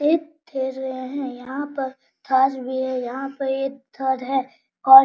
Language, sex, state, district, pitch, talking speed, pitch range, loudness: Hindi, female, Bihar, Araria, 265 Hz, 190 wpm, 260-275 Hz, -24 LUFS